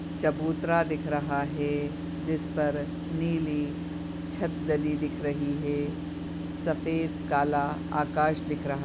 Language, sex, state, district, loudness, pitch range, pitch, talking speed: Hindi, male, Uttar Pradesh, Jyotiba Phule Nagar, -30 LUFS, 145-155 Hz, 150 Hz, 115 wpm